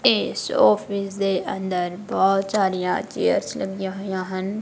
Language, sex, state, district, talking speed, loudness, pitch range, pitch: Punjabi, female, Punjab, Kapurthala, 130 wpm, -23 LUFS, 185-195 Hz, 190 Hz